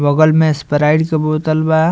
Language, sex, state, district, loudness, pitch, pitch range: Bhojpuri, male, Bihar, Muzaffarpur, -14 LUFS, 155 Hz, 150-160 Hz